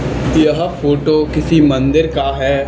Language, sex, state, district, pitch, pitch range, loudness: Hindi, male, Haryana, Charkhi Dadri, 145 Hz, 135-155 Hz, -14 LUFS